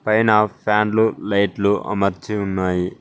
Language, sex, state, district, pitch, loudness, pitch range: Telugu, male, Telangana, Mahabubabad, 105 Hz, -19 LUFS, 100-105 Hz